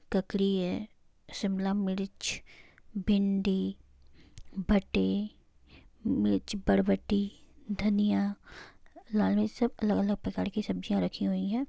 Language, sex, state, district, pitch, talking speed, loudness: Hindi, female, Bihar, Sitamarhi, 195 Hz, 105 wpm, -30 LUFS